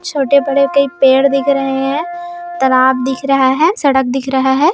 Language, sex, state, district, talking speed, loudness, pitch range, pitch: Hindi, female, Bihar, Kishanganj, 175 wpm, -13 LUFS, 265-280 Hz, 275 Hz